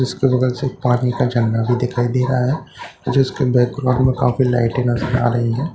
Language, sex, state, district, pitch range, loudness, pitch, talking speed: Hindi, male, Bihar, Katihar, 120-130 Hz, -18 LUFS, 125 Hz, 250 wpm